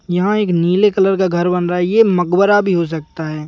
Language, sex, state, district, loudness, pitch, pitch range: Hindi, male, Madhya Pradesh, Bhopal, -15 LUFS, 180 Hz, 175-195 Hz